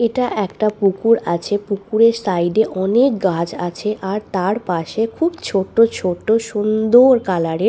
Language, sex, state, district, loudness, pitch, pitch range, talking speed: Bengali, female, West Bengal, Purulia, -17 LUFS, 210 Hz, 185-230 Hz, 140 wpm